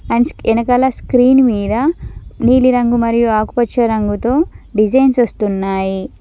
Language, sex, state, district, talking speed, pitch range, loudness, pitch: Telugu, female, Telangana, Mahabubabad, 95 wpm, 215-250 Hz, -14 LUFS, 235 Hz